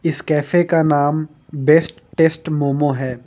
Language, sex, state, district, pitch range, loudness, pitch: Hindi, male, Jharkhand, Ranchi, 145-160 Hz, -17 LUFS, 150 Hz